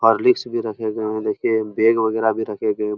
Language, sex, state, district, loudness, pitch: Hindi, male, Uttar Pradesh, Muzaffarnagar, -20 LUFS, 110 Hz